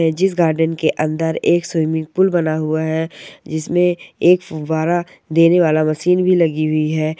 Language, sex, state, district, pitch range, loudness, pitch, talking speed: Hindi, male, Bihar, Sitamarhi, 155-175 Hz, -17 LUFS, 160 Hz, 150 wpm